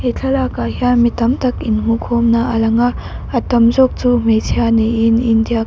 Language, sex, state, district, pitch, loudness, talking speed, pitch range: Mizo, female, Mizoram, Aizawl, 235 Hz, -15 LUFS, 190 wpm, 230-245 Hz